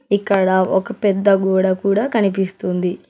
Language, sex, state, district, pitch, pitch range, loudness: Telugu, male, Telangana, Hyderabad, 195 Hz, 190-205 Hz, -17 LUFS